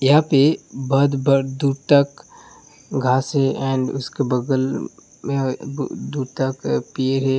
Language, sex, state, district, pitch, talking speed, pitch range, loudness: Hindi, male, Uttar Pradesh, Hamirpur, 135 Hz, 130 wpm, 130-140 Hz, -20 LUFS